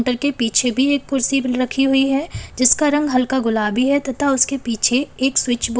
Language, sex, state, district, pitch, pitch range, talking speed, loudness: Hindi, female, Uttar Pradesh, Lalitpur, 265 Hz, 245-275 Hz, 205 wpm, -17 LUFS